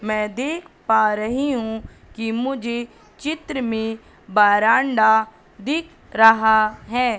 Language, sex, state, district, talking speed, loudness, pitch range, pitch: Hindi, female, Madhya Pradesh, Katni, 110 wpm, -19 LUFS, 220-260 Hz, 225 Hz